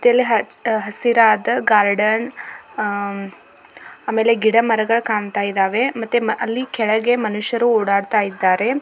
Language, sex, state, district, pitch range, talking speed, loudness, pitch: Kannada, female, Karnataka, Belgaum, 205-235 Hz, 100 wpm, -18 LUFS, 220 Hz